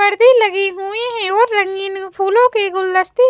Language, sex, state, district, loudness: Hindi, female, Chhattisgarh, Raipur, -15 LUFS